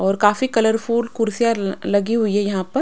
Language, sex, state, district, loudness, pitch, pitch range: Hindi, female, Maharashtra, Mumbai Suburban, -19 LUFS, 220 Hz, 200-230 Hz